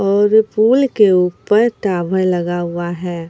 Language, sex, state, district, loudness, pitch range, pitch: Hindi, female, Bihar, Katihar, -15 LUFS, 175-220 Hz, 190 Hz